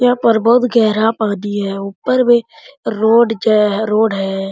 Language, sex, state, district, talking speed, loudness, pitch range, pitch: Hindi, male, Jharkhand, Sahebganj, 160 wpm, -14 LUFS, 205-235 Hz, 220 Hz